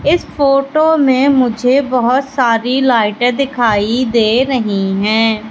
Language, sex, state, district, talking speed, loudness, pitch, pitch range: Hindi, female, Madhya Pradesh, Katni, 120 wpm, -13 LUFS, 250 Hz, 225-275 Hz